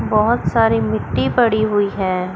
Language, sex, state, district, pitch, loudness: Hindi, female, Chandigarh, Chandigarh, 190 Hz, -17 LUFS